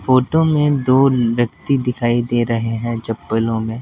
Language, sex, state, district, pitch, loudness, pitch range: Hindi, male, Delhi, New Delhi, 120 Hz, -17 LUFS, 115-135 Hz